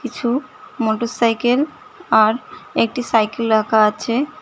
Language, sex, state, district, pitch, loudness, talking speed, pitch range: Bengali, female, West Bengal, Cooch Behar, 235 Hz, -18 LUFS, 95 wpm, 220-275 Hz